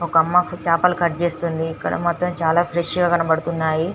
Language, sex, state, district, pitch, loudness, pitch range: Telugu, female, Telangana, Nalgonda, 170 Hz, -20 LUFS, 165-175 Hz